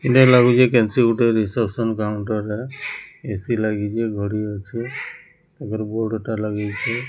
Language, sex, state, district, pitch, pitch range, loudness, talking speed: Odia, male, Odisha, Sambalpur, 110 Hz, 105-120 Hz, -20 LUFS, 95 wpm